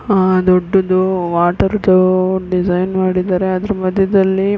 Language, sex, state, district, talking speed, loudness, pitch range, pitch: Kannada, female, Karnataka, Mysore, 105 wpm, -14 LUFS, 185-190 Hz, 185 Hz